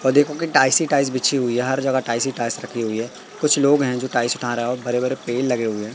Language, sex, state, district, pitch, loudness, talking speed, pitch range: Hindi, male, Madhya Pradesh, Katni, 125 Hz, -20 LUFS, 320 wpm, 120-135 Hz